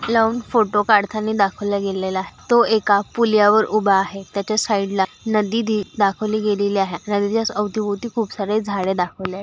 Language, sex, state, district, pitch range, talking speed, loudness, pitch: Marathi, female, Maharashtra, Aurangabad, 200-220 Hz, 155 wpm, -19 LUFS, 205 Hz